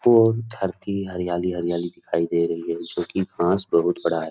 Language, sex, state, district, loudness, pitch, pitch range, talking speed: Hindi, male, Bihar, Supaul, -23 LUFS, 90 Hz, 85-95 Hz, 180 wpm